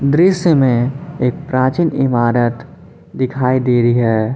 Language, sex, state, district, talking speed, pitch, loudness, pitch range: Hindi, male, Jharkhand, Palamu, 125 wpm, 130 Hz, -15 LUFS, 120-150 Hz